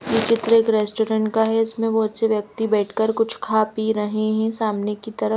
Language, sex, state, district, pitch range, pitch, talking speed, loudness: Hindi, female, Haryana, Rohtak, 215-225 Hz, 220 Hz, 200 wpm, -20 LUFS